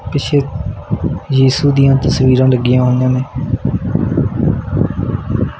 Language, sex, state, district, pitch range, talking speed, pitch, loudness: Punjabi, male, Punjab, Kapurthala, 125-135 Hz, 75 wpm, 130 Hz, -14 LUFS